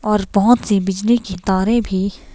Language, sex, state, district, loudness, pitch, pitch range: Hindi, female, Himachal Pradesh, Shimla, -17 LUFS, 205 Hz, 195-235 Hz